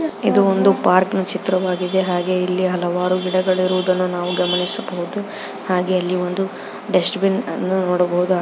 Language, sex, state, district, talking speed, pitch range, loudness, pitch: Kannada, female, Karnataka, Raichur, 120 wpm, 180-190 Hz, -19 LUFS, 185 Hz